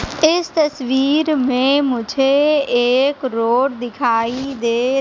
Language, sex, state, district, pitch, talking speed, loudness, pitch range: Hindi, female, Madhya Pradesh, Katni, 265 Hz, 95 wpm, -17 LUFS, 245-290 Hz